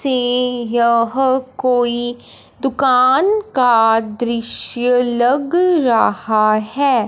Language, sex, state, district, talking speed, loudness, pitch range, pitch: Hindi, female, Punjab, Fazilka, 75 wpm, -15 LUFS, 235-265 Hz, 245 Hz